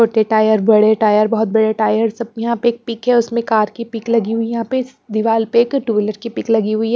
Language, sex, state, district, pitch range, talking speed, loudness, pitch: Hindi, female, Punjab, Pathankot, 220-235 Hz, 275 wpm, -16 LUFS, 225 Hz